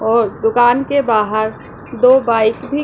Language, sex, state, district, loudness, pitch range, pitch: Hindi, female, Punjab, Pathankot, -14 LUFS, 220-255 Hz, 235 Hz